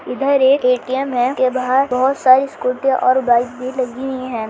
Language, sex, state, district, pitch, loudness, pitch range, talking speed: Hindi, female, Maharashtra, Chandrapur, 255 Hz, -16 LUFS, 250-265 Hz, 200 wpm